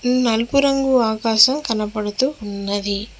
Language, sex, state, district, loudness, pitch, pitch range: Telugu, female, Telangana, Mahabubabad, -18 LUFS, 225 Hz, 210-260 Hz